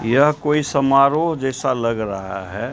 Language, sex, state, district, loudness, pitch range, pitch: Hindi, male, Bihar, Katihar, -19 LUFS, 115-150 Hz, 135 Hz